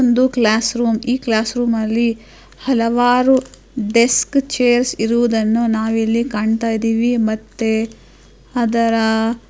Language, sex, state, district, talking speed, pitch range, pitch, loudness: Kannada, female, Karnataka, Dharwad, 115 wpm, 225-245 Hz, 230 Hz, -16 LUFS